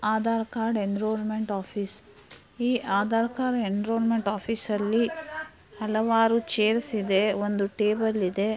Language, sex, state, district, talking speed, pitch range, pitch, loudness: Kannada, female, Karnataka, Belgaum, 120 wpm, 205-230 Hz, 220 Hz, -26 LUFS